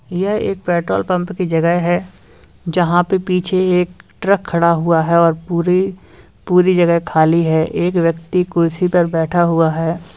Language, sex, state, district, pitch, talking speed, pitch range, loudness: Hindi, male, Uttar Pradesh, Lalitpur, 175 Hz, 165 wpm, 170-180 Hz, -16 LUFS